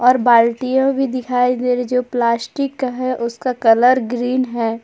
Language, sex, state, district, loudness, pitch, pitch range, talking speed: Hindi, female, Jharkhand, Palamu, -17 LUFS, 250 Hz, 235-255 Hz, 200 wpm